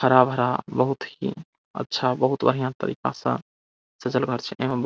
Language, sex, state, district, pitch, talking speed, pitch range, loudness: Maithili, male, Bihar, Saharsa, 125 Hz, 175 wpm, 125-130 Hz, -25 LUFS